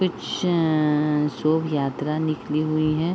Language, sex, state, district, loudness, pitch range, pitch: Hindi, female, Uttar Pradesh, Ghazipur, -23 LUFS, 150-160 Hz, 155 Hz